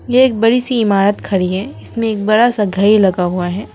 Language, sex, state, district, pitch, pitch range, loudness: Hindi, female, West Bengal, Alipurduar, 205 Hz, 190-225 Hz, -14 LUFS